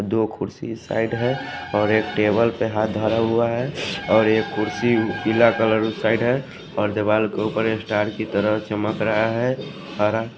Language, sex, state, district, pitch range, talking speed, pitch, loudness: Hindi, male, Haryana, Jhajjar, 105-115 Hz, 210 wpm, 110 Hz, -21 LUFS